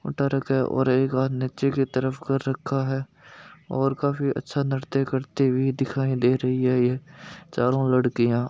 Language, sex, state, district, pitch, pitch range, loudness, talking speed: Hindi, male, Rajasthan, Nagaur, 135 Hz, 130-135 Hz, -24 LUFS, 140 wpm